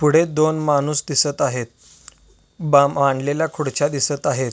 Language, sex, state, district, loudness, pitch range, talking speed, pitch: Marathi, male, Maharashtra, Solapur, -19 LUFS, 140-150 Hz, 145 wpm, 145 Hz